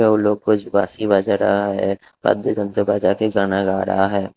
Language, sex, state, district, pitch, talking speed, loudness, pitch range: Hindi, male, Delhi, New Delhi, 100 Hz, 190 wpm, -19 LUFS, 95-105 Hz